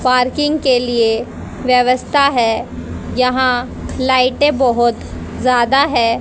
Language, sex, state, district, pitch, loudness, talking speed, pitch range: Hindi, female, Haryana, Rohtak, 255 Hz, -15 LUFS, 95 wpm, 240-260 Hz